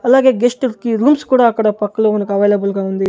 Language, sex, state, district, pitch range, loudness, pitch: Telugu, male, Andhra Pradesh, Sri Satya Sai, 205-255 Hz, -14 LUFS, 220 Hz